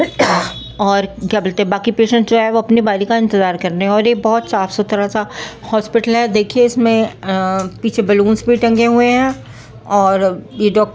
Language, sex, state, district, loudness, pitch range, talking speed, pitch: Hindi, female, Bihar, Saharsa, -14 LUFS, 200-230 Hz, 160 wpm, 215 Hz